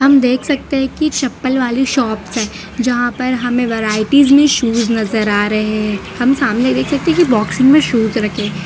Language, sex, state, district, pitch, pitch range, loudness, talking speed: Hindi, female, Gujarat, Valsad, 245 Hz, 215-265 Hz, -14 LUFS, 195 wpm